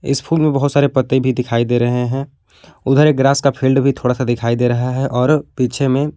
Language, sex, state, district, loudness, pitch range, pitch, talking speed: Hindi, male, Jharkhand, Palamu, -16 LUFS, 125-140 Hz, 130 Hz, 255 wpm